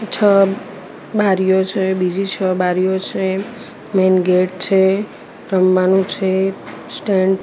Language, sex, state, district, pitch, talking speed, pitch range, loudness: Gujarati, female, Gujarat, Gandhinagar, 190 Hz, 115 wpm, 185-195 Hz, -16 LUFS